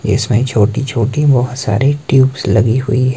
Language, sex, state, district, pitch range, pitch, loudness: Hindi, male, Himachal Pradesh, Shimla, 115-135 Hz, 125 Hz, -13 LUFS